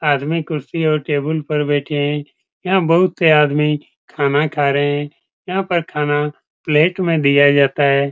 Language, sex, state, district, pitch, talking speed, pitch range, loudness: Hindi, male, Bihar, Supaul, 150 Hz, 170 wpm, 145-160 Hz, -17 LUFS